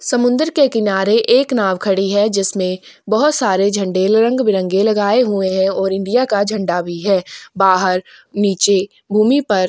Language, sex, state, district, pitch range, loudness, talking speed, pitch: Hindi, female, Chhattisgarh, Kabirdham, 190-220 Hz, -15 LUFS, 155 wpm, 200 Hz